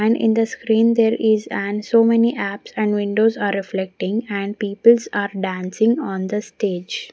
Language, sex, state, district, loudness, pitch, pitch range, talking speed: English, female, Maharashtra, Gondia, -19 LUFS, 210 Hz, 200-230 Hz, 175 wpm